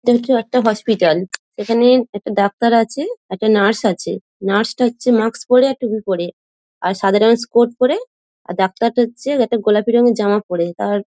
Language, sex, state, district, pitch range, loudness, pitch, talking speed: Bengali, female, West Bengal, Dakshin Dinajpur, 205-240 Hz, -16 LUFS, 225 Hz, 175 wpm